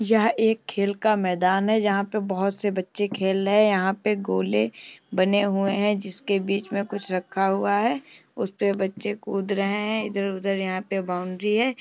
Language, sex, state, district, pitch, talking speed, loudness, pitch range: Hindi, female, Uttar Pradesh, Muzaffarnagar, 200 Hz, 195 wpm, -24 LUFS, 190-210 Hz